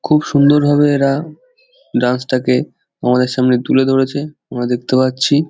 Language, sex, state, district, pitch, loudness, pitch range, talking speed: Bengali, male, West Bengal, Jhargram, 135 Hz, -15 LUFS, 125-150 Hz, 140 wpm